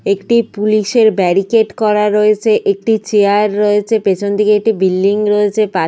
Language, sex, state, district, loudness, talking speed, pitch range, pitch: Bengali, female, Jharkhand, Sahebganj, -13 LUFS, 165 wpm, 200-215 Hz, 210 Hz